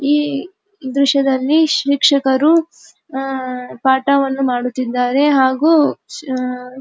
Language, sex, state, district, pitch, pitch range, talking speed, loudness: Kannada, female, Karnataka, Dharwad, 275 Hz, 260-295 Hz, 80 wpm, -16 LUFS